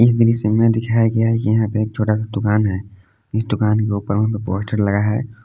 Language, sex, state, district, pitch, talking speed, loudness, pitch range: Hindi, male, Jharkhand, Palamu, 110 Hz, 255 wpm, -18 LUFS, 105-115 Hz